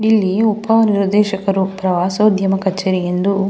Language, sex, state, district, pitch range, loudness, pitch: Kannada, female, Karnataka, Mysore, 190-210 Hz, -16 LUFS, 195 Hz